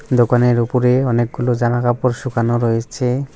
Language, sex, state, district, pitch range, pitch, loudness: Bengali, male, West Bengal, Cooch Behar, 120-125 Hz, 120 Hz, -17 LUFS